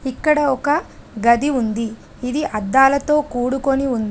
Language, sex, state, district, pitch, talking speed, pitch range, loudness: Telugu, female, Telangana, Adilabad, 265 Hz, 115 wpm, 235-285 Hz, -18 LUFS